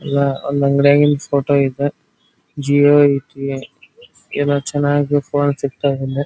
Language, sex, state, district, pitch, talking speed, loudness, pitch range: Kannada, male, Karnataka, Dharwad, 140 Hz, 105 wpm, -16 LUFS, 140-145 Hz